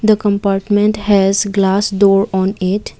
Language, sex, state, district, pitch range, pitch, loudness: English, female, Assam, Kamrup Metropolitan, 195-205 Hz, 200 Hz, -14 LUFS